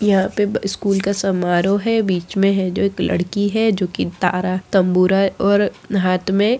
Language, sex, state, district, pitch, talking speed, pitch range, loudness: Hindi, female, Bihar, Saharsa, 195 Hz, 200 wpm, 185-205 Hz, -18 LUFS